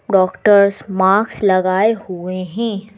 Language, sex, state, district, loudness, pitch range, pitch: Hindi, female, Madhya Pradesh, Bhopal, -16 LUFS, 185-210 Hz, 195 Hz